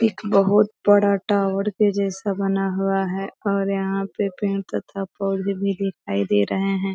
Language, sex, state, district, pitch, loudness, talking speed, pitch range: Hindi, female, Bihar, East Champaran, 195 Hz, -22 LUFS, 180 wpm, 195-205 Hz